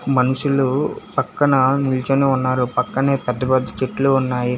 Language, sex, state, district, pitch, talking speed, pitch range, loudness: Telugu, male, Telangana, Hyderabad, 130 Hz, 120 wpm, 130-135 Hz, -18 LUFS